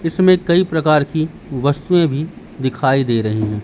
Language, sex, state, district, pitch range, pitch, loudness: Hindi, male, Madhya Pradesh, Katni, 130-165 Hz, 150 Hz, -17 LUFS